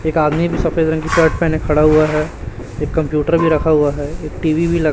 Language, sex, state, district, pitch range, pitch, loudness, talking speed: Hindi, male, Chhattisgarh, Raipur, 150-160 Hz, 155 Hz, -16 LUFS, 245 wpm